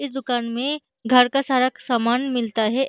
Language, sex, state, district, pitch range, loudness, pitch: Hindi, female, Uttar Pradesh, Jyotiba Phule Nagar, 240-270 Hz, -21 LUFS, 255 Hz